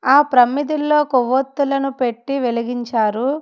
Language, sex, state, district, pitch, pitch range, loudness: Telugu, female, Telangana, Hyderabad, 265 Hz, 245-280 Hz, -17 LUFS